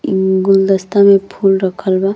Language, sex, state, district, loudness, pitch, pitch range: Bhojpuri, female, Uttar Pradesh, Deoria, -12 LUFS, 195 Hz, 190-195 Hz